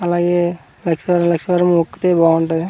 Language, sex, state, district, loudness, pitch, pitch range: Telugu, male, Andhra Pradesh, Manyam, -16 LUFS, 175 Hz, 165-175 Hz